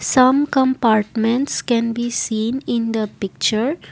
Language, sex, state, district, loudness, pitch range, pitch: English, female, Assam, Kamrup Metropolitan, -18 LUFS, 220-255 Hz, 235 Hz